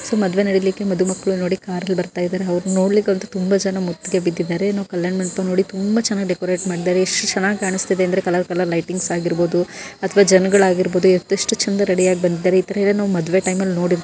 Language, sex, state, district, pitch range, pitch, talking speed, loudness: Kannada, female, Karnataka, Gulbarga, 180-195 Hz, 185 Hz, 190 wpm, -18 LUFS